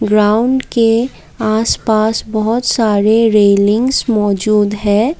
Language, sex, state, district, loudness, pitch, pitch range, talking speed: Hindi, female, Assam, Kamrup Metropolitan, -13 LUFS, 220 Hz, 210-230 Hz, 90 wpm